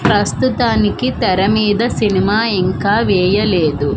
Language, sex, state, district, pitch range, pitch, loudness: Telugu, female, Andhra Pradesh, Manyam, 160-210 Hz, 195 Hz, -14 LUFS